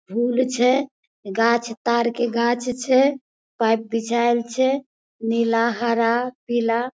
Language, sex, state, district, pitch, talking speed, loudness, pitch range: Maithili, female, Bihar, Madhepura, 235 Hz, 110 wpm, -21 LUFS, 230-250 Hz